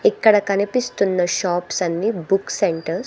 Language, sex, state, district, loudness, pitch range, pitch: Telugu, female, Andhra Pradesh, Sri Satya Sai, -19 LUFS, 175-210 Hz, 195 Hz